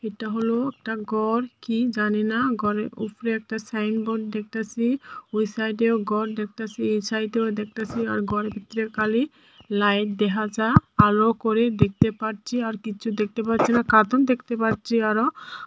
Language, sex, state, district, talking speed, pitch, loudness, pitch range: Bengali, female, Tripura, Dhalai, 155 wpm, 220 Hz, -24 LUFS, 215-230 Hz